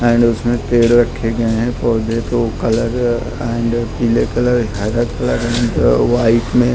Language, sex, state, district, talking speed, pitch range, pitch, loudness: Hindi, male, Maharashtra, Mumbai Suburban, 160 wpm, 115-120 Hz, 115 Hz, -16 LUFS